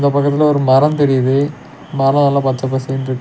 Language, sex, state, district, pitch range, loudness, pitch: Tamil, male, Tamil Nadu, Nilgiris, 130-145 Hz, -14 LUFS, 140 Hz